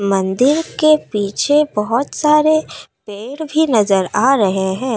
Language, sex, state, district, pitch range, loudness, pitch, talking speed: Hindi, female, Assam, Kamrup Metropolitan, 205-300 Hz, -15 LUFS, 250 Hz, 135 wpm